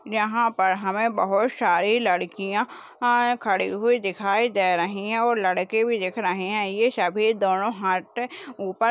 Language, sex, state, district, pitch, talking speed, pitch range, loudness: Hindi, female, Maharashtra, Nagpur, 215 Hz, 170 wpm, 190-230 Hz, -23 LUFS